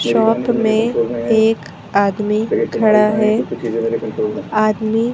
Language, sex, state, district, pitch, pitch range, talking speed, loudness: Hindi, female, Madhya Pradesh, Bhopal, 215 Hz, 145-220 Hz, 80 wpm, -16 LUFS